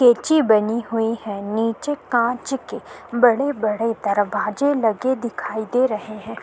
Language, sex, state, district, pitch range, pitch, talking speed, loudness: Hindi, female, Goa, North and South Goa, 215-250 Hz, 230 Hz, 130 wpm, -21 LUFS